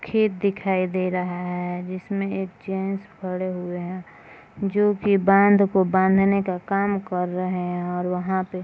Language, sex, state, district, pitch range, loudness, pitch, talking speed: Hindi, female, Bihar, Gopalganj, 180-195 Hz, -23 LUFS, 190 Hz, 175 wpm